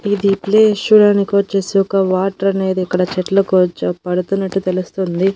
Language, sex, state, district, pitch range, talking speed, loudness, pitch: Telugu, female, Andhra Pradesh, Annamaya, 185-200 Hz, 135 wpm, -15 LUFS, 195 Hz